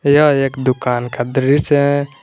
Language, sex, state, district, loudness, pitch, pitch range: Hindi, male, Jharkhand, Garhwa, -15 LUFS, 135 Hz, 125-145 Hz